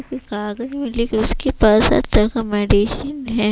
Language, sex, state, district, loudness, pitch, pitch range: Hindi, female, Chhattisgarh, Raipur, -18 LUFS, 230 Hz, 215-265 Hz